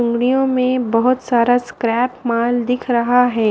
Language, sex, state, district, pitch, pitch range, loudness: Hindi, female, Haryana, Jhajjar, 245 Hz, 235-250 Hz, -16 LUFS